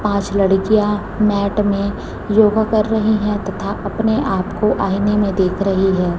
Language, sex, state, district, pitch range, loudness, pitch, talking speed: Hindi, female, Chhattisgarh, Raipur, 195-210 Hz, -17 LUFS, 205 Hz, 165 wpm